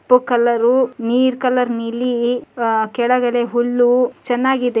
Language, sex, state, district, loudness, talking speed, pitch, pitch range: Kannada, male, Karnataka, Dharwad, -17 LUFS, 110 wpm, 245 Hz, 240-250 Hz